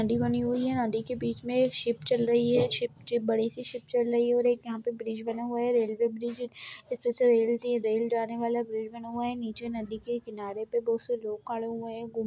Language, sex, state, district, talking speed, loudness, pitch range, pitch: Hindi, female, Bihar, Lakhisarai, 270 wpm, -29 LUFS, 230-245 Hz, 235 Hz